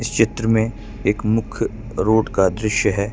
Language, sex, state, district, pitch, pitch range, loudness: Hindi, male, Jharkhand, Ranchi, 110 Hz, 105-115 Hz, -20 LUFS